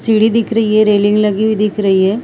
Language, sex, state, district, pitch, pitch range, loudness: Hindi, female, Chhattisgarh, Bilaspur, 215 Hz, 205-220 Hz, -13 LUFS